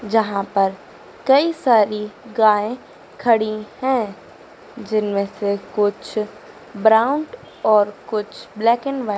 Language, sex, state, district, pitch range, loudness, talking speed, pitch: Hindi, female, Madhya Pradesh, Dhar, 205-235 Hz, -19 LUFS, 110 wpm, 215 Hz